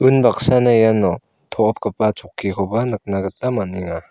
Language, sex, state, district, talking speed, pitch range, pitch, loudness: Garo, male, Meghalaya, South Garo Hills, 100 wpm, 95-125 Hz, 110 Hz, -18 LUFS